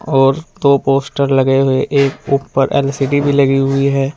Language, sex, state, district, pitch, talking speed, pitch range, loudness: Hindi, male, Uttar Pradesh, Saharanpur, 135 Hz, 175 wpm, 135-140 Hz, -14 LUFS